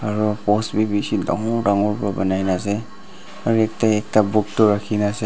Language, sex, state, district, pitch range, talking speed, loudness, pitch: Nagamese, male, Nagaland, Dimapur, 100-110 Hz, 205 wpm, -20 LUFS, 105 Hz